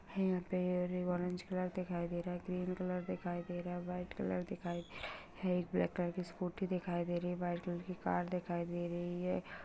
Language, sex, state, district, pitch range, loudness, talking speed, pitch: Hindi, female, Bihar, Purnia, 175-180 Hz, -40 LUFS, 240 wpm, 180 Hz